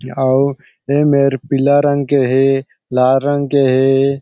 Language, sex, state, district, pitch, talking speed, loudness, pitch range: Chhattisgarhi, male, Chhattisgarh, Sarguja, 135 Hz, 155 wpm, -14 LUFS, 135-140 Hz